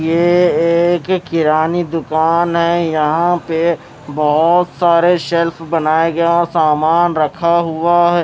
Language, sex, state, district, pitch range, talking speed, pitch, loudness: Hindi, male, Maharashtra, Mumbai Suburban, 160-175 Hz, 115 wpm, 170 Hz, -14 LUFS